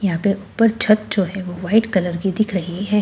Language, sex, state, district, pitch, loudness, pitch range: Hindi, female, Bihar, Katihar, 195 Hz, -19 LUFS, 185-215 Hz